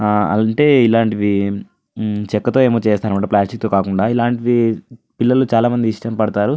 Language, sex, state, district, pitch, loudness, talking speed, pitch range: Telugu, male, Andhra Pradesh, Anantapur, 110 Hz, -16 LUFS, 135 wpm, 105-120 Hz